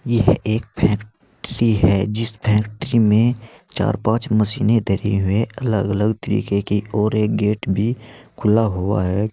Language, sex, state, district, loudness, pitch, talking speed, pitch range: Hindi, male, Uttar Pradesh, Saharanpur, -19 LUFS, 110 Hz, 155 wpm, 105-115 Hz